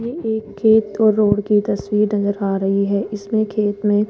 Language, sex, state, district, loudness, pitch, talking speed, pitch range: Hindi, female, Rajasthan, Jaipur, -18 LUFS, 210 Hz, 205 wpm, 205-215 Hz